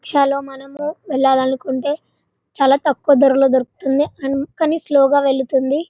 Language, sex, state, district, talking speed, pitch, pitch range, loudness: Telugu, female, Telangana, Karimnagar, 130 wpm, 275 Hz, 270-290 Hz, -17 LUFS